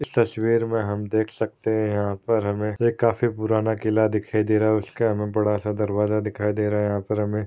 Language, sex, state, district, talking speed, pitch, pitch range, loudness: Hindi, male, Maharashtra, Chandrapur, 235 wpm, 110 Hz, 105-110 Hz, -23 LUFS